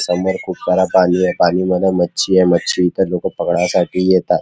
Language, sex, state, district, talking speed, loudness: Marathi, male, Maharashtra, Chandrapur, 205 wpm, -15 LUFS